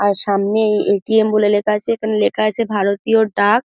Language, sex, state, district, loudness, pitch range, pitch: Bengali, female, West Bengal, Dakshin Dinajpur, -16 LUFS, 205-220 Hz, 210 Hz